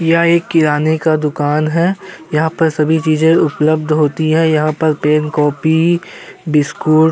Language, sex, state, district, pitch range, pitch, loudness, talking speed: Hindi, male, Uttar Pradesh, Jyotiba Phule Nagar, 150-165 Hz, 155 Hz, -14 LUFS, 160 wpm